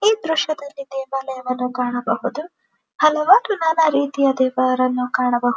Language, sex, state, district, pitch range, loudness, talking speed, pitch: Kannada, female, Karnataka, Dharwad, 255-315 Hz, -19 LUFS, 85 wpm, 270 Hz